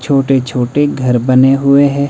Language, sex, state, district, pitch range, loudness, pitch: Hindi, male, Himachal Pradesh, Shimla, 130-140 Hz, -11 LUFS, 135 Hz